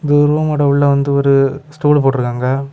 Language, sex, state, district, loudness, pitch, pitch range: Tamil, male, Tamil Nadu, Kanyakumari, -14 LUFS, 140 Hz, 135-145 Hz